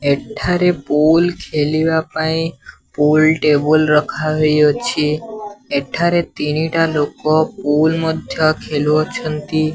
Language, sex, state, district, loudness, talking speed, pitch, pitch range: Odia, male, Odisha, Sambalpur, -16 LUFS, 75 wpm, 155 Hz, 150-165 Hz